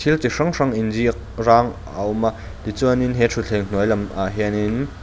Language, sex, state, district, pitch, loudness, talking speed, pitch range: Mizo, male, Mizoram, Aizawl, 110 Hz, -20 LUFS, 200 wpm, 105-120 Hz